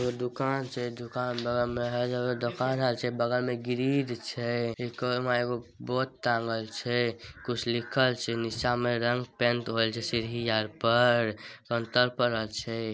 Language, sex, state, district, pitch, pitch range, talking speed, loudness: Maithili, male, Bihar, Samastipur, 120 Hz, 115-125 Hz, 30 wpm, -29 LUFS